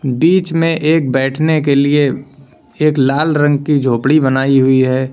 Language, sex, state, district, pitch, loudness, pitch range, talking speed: Hindi, male, Uttar Pradesh, Lalitpur, 145 Hz, -13 LUFS, 135-155 Hz, 165 wpm